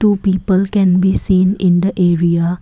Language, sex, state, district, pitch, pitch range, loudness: English, female, Assam, Kamrup Metropolitan, 185 Hz, 180-195 Hz, -14 LUFS